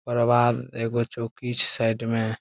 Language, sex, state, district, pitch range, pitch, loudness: Maithili, male, Bihar, Saharsa, 115-120 Hz, 115 Hz, -24 LUFS